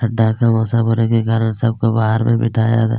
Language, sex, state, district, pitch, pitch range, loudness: Hindi, male, Chhattisgarh, Kabirdham, 115 Hz, 110-115 Hz, -16 LUFS